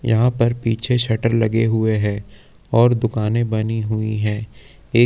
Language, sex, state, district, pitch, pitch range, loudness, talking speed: Hindi, male, Bihar, Gopalganj, 115 Hz, 110-115 Hz, -19 LUFS, 155 wpm